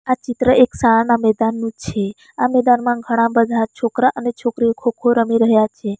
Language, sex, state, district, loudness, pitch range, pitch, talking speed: Gujarati, female, Gujarat, Valsad, -17 LUFS, 225-245 Hz, 235 Hz, 170 wpm